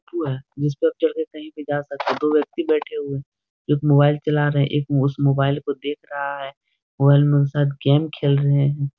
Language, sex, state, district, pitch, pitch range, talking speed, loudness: Hindi, male, Bihar, Jahanabad, 145 Hz, 140-150 Hz, 245 wpm, -20 LUFS